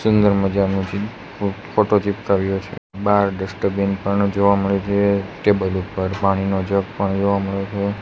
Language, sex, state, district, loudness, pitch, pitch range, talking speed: Gujarati, male, Gujarat, Gandhinagar, -20 LUFS, 100 Hz, 95-100 Hz, 155 wpm